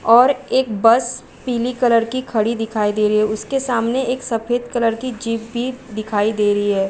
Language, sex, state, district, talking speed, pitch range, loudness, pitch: Hindi, female, Uttar Pradesh, Varanasi, 200 wpm, 215-250 Hz, -18 LUFS, 230 Hz